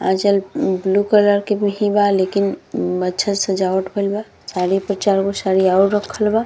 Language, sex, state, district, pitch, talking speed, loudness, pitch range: Bhojpuri, female, Bihar, Gopalganj, 200 Hz, 175 wpm, -18 LUFS, 190-205 Hz